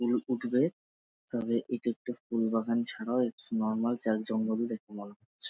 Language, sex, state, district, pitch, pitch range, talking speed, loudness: Bengali, male, West Bengal, Jalpaiguri, 115 Hz, 110-120 Hz, 165 wpm, -32 LUFS